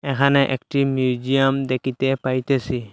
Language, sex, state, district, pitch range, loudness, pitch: Bengali, male, Assam, Hailakandi, 130-135 Hz, -20 LUFS, 135 Hz